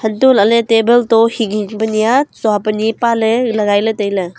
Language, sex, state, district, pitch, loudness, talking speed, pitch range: Wancho, female, Arunachal Pradesh, Longding, 220 Hz, -13 LUFS, 230 wpm, 210-230 Hz